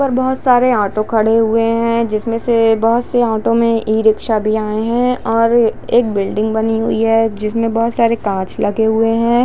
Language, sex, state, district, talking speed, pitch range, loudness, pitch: Hindi, female, Jharkhand, Jamtara, 210 wpm, 220-230 Hz, -15 LUFS, 225 Hz